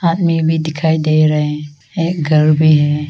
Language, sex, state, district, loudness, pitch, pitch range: Hindi, female, Arunachal Pradesh, Lower Dibang Valley, -14 LUFS, 155 Hz, 150-160 Hz